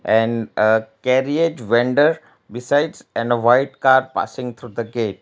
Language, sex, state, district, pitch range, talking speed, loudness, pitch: English, male, Gujarat, Valsad, 115-130 Hz, 140 wpm, -18 LUFS, 120 Hz